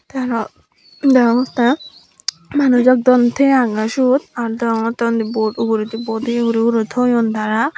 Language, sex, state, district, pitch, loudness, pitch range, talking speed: Chakma, female, Tripura, Dhalai, 235 Hz, -16 LUFS, 225-255 Hz, 145 wpm